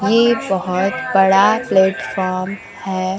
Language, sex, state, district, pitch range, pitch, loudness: Hindi, female, Bihar, Kaimur, 190-210 Hz, 195 Hz, -16 LUFS